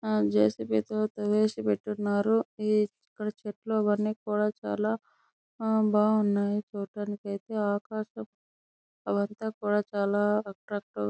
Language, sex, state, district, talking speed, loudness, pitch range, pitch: Telugu, female, Andhra Pradesh, Chittoor, 120 wpm, -29 LUFS, 200-215 Hz, 210 Hz